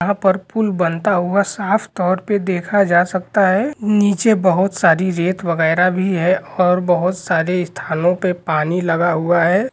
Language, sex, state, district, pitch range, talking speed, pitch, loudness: Hindi, male, Bihar, Saran, 175-195 Hz, 175 wpm, 185 Hz, -16 LUFS